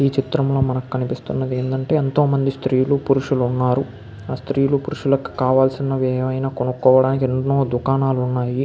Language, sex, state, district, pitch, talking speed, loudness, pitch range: Telugu, male, Andhra Pradesh, Krishna, 130 Hz, 90 wpm, -19 LUFS, 130-135 Hz